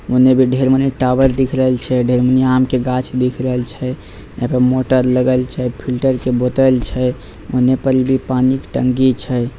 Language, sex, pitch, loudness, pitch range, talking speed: Bhojpuri, male, 130 Hz, -15 LUFS, 125-130 Hz, 200 wpm